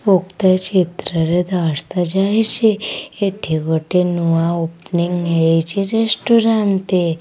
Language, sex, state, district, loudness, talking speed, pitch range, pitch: Odia, female, Odisha, Khordha, -17 LUFS, 90 wpm, 165-200 Hz, 180 Hz